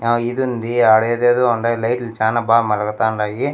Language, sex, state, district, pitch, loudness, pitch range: Telugu, male, Andhra Pradesh, Annamaya, 115 Hz, -17 LUFS, 110-120 Hz